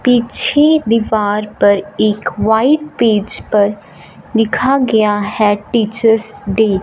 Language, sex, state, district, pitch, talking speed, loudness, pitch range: Hindi, female, Punjab, Fazilka, 220 Hz, 115 wpm, -14 LUFS, 205-235 Hz